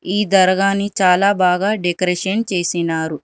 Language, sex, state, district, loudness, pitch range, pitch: Telugu, male, Telangana, Hyderabad, -16 LUFS, 180-200 Hz, 185 Hz